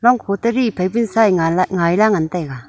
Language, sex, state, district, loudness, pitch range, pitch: Wancho, female, Arunachal Pradesh, Longding, -16 LUFS, 175-230 Hz, 200 Hz